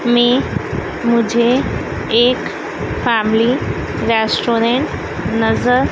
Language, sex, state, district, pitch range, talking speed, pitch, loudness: Hindi, female, Madhya Pradesh, Dhar, 225-245 Hz, 60 wpm, 235 Hz, -16 LUFS